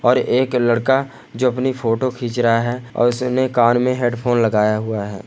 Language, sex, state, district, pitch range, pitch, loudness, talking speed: Hindi, male, Bihar, Jamui, 115-125 Hz, 120 Hz, -18 LUFS, 195 wpm